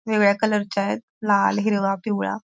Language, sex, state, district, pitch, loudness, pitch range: Marathi, female, Maharashtra, Pune, 210 Hz, -22 LUFS, 200-220 Hz